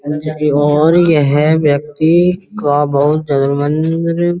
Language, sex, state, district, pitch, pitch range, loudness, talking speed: Hindi, male, Uttar Pradesh, Budaun, 150 Hz, 145-165 Hz, -13 LUFS, 80 wpm